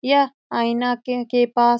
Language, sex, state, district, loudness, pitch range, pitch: Hindi, female, Bihar, Saran, -21 LUFS, 240-255 Hz, 245 Hz